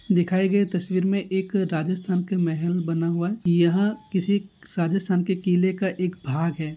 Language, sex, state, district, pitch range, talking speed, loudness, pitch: Hindi, male, Rajasthan, Nagaur, 170-190 Hz, 175 wpm, -24 LUFS, 185 Hz